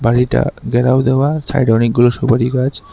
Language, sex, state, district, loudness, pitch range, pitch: Bengali, male, Tripura, West Tripura, -14 LUFS, 120-130 Hz, 125 Hz